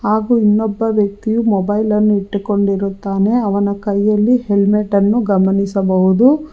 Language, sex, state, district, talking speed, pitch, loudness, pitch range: Kannada, female, Karnataka, Bangalore, 100 wpm, 205 Hz, -15 LUFS, 200-220 Hz